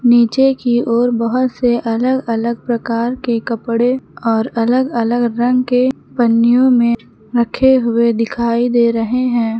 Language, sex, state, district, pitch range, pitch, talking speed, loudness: Hindi, female, Uttar Pradesh, Lucknow, 230-250 Hz, 240 Hz, 145 wpm, -15 LUFS